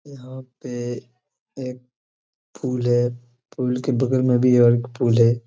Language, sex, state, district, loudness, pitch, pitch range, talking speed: Hindi, male, Jharkhand, Jamtara, -21 LUFS, 125 Hz, 120-130 Hz, 155 wpm